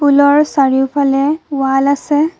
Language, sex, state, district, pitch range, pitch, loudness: Assamese, female, Assam, Kamrup Metropolitan, 270-295 Hz, 285 Hz, -13 LUFS